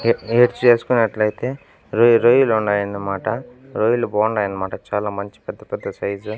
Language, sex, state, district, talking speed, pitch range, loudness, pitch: Telugu, male, Andhra Pradesh, Annamaya, 130 wpm, 100-120 Hz, -19 LUFS, 110 Hz